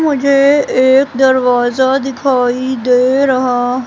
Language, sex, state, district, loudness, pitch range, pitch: Hindi, female, Madhya Pradesh, Katni, -12 LUFS, 250-275 Hz, 260 Hz